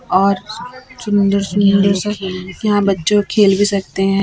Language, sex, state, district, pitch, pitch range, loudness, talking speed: Hindi, female, Chhattisgarh, Raipur, 200 Hz, 195-205 Hz, -15 LUFS, 125 wpm